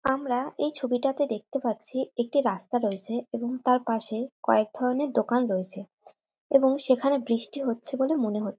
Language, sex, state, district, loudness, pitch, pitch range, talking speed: Bengali, female, West Bengal, North 24 Parganas, -27 LUFS, 250 Hz, 230-270 Hz, 145 wpm